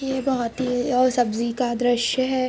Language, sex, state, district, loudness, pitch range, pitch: Hindi, female, Uttar Pradesh, Etah, -22 LUFS, 245-260 Hz, 250 Hz